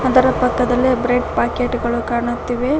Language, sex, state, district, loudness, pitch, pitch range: Kannada, female, Karnataka, Koppal, -18 LUFS, 245 Hz, 240-255 Hz